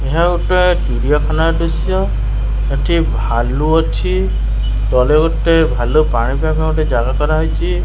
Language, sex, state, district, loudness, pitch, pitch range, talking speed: Odia, male, Odisha, Khordha, -15 LUFS, 150 Hz, 120-160 Hz, 115 wpm